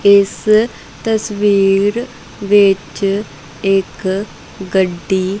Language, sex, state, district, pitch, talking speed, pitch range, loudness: Punjabi, female, Punjab, Kapurthala, 200 Hz, 55 wpm, 195-210 Hz, -15 LUFS